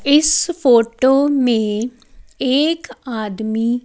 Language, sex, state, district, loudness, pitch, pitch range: Hindi, female, Chandigarh, Chandigarh, -16 LUFS, 255 Hz, 230-285 Hz